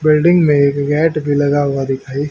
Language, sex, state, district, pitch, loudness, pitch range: Hindi, male, Haryana, Charkhi Dadri, 145 Hz, -14 LUFS, 140-155 Hz